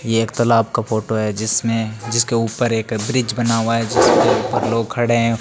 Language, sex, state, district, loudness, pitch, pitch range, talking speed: Hindi, male, Rajasthan, Bikaner, -18 LUFS, 115 Hz, 110-120 Hz, 210 wpm